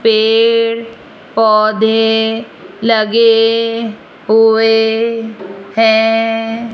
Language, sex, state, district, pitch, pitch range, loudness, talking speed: Hindi, female, Rajasthan, Jaipur, 225 Hz, 220-230 Hz, -12 LUFS, 45 wpm